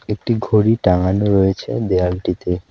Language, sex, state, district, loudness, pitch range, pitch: Bengali, male, West Bengal, Alipurduar, -17 LUFS, 90-105 Hz, 95 Hz